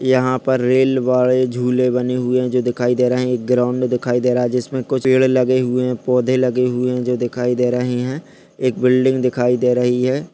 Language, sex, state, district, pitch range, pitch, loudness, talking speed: Hindi, male, Bihar, Begusarai, 125-130 Hz, 125 Hz, -17 LUFS, 240 wpm